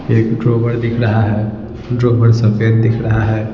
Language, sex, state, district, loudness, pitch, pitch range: Hindi, male, Bihar, Patna, -14 LUFS, 115 Hz, 110-115 Hz